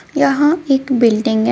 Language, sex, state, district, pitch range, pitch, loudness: Hindi, female, Jharkhand, Ranchi, 225-275 Hz, 265 Hz, -14 LUFS